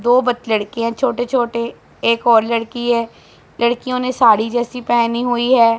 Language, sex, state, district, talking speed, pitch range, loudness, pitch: Hindi, female, Punjab, Pathankot, 165 wpm, 230-245 Hz, -17 LUFS, 235 Hz